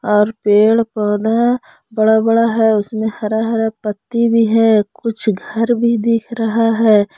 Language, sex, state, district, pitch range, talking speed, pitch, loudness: Hindi, female, Jharkhand, Palamu, 215-230 Hz, 150 wpm, 225 Hz, -15 LUFS